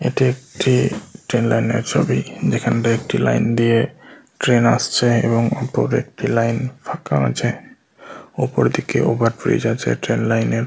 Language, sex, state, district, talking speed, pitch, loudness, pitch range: Bengali, male, West Bengal, Malda, 140 wpm, 115 Hz, -18 LUFS, 115-120 Hz